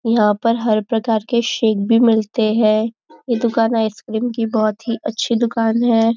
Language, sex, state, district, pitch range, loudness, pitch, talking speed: Hindi, female, Maharashtra, Nagpur, 220-230 Hz, -17 LUFS, 225 Hz, 175 wpm